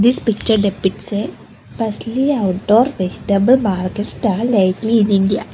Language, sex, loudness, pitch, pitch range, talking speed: English, female, -16 LUFS, 210 Hz, 195-230 Hz, 130 wpm